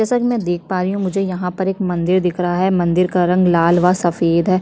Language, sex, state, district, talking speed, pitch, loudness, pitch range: Hindi, female, Chhattisgarh, Sukma, 285 wpm, 180 Hz, -17 LUFS, 175-190 Hz